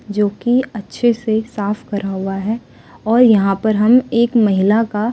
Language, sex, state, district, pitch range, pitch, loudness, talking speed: Hindi, female, Delhi, New Delhi, 205-235 Hz, 215 Hz, -16 LUFS, 175 wpm